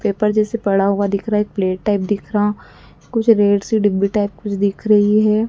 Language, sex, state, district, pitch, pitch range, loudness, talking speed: Hindi, female, Madhya Pradesh, Dhar, 205 Hz, 200-215 Hz, -17 LUFS, 230 wpm